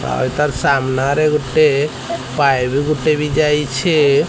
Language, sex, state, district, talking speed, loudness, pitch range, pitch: Odia, male, Odisha, Sambalpur, 110 wpm, -16 LUFS, 130-150 Hz, 145 Hz